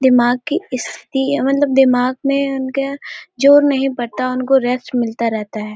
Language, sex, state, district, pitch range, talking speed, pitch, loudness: Hindi, female, Uttar Pradesh, Hamirpur, 245-275 Hz, 165 wpm, 260 Hz, -16 LUFS